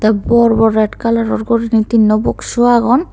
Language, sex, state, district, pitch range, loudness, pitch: Chakma, female, Tripura, Unakoti, 220-235 Hz, -13 LUFS, 230 Hz